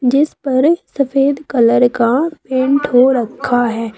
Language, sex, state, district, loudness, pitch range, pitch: Hindi, female, Uttar Pradesh, Saharanpur, -14 LUFS, 245-280 Hz, 260 Hz